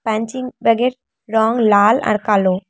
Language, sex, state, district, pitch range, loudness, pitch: Bengali, female, West Bengal, Cooch Behar, 210-240 Hz, -16 LUFS, 220 Hz